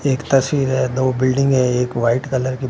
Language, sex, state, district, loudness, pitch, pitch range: Hindi, male, Rajasthan, Bikaner, -18 LUFS, 130 Hz, 130-135 Hz